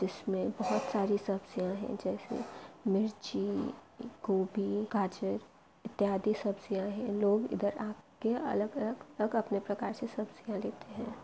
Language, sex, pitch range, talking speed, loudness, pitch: Maithili, female, 195-215 Hz, 130 wpm, -35 LUFS, 205 Hz